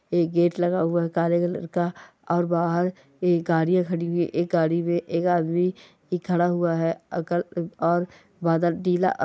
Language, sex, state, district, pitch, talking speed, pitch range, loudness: Angika, female, Bihar, Madhepura, 175 Hz, 180 wpm, 170-175 Hz, -24 LUFS